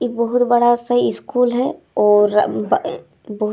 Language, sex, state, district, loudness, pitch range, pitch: Hindi, female, Bihar, Darbhanga, -17 LUFS, 210-245 Hz, 240 Hz